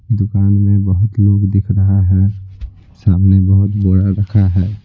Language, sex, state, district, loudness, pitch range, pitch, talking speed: Hindi, male, Bihar, Patna, -13 LUFS, 95-100 Hz, 100 Hz, 135 wpm